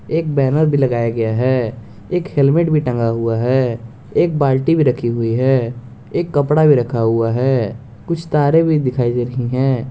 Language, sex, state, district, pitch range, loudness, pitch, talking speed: Hindi, male, Jharkhand, Garhwa, 120-150 Hz, -16 LUFS, 130 Hz, 190 wpm